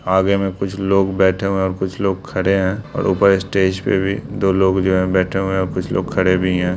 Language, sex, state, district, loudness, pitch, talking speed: Hindi, male, Bihar, Jamui, -18 LUFS, 95 Hz, 265 wpm